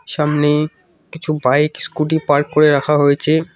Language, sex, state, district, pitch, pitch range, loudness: Bengali, male, West Bengal, Cooch Behar, 150 Hz, 150-160 Hz, -16 LUFS